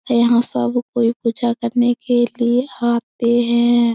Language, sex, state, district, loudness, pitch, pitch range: Hindi, female, Bihar, Supaul, -17 LUFS, 235 Hz, 235-240 Hz